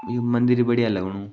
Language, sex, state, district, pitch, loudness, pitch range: Garhwali, male, Uttarakhand, Tehri Garhwal, 120 Hz, -21 LUFS, 100-120 Hz